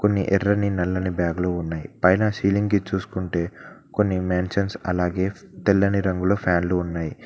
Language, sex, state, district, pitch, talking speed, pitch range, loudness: Telugu, male, Telangana, Mahabubabad, 95 Hz, 140 wpm, 90-100 Hz, -23 LUFS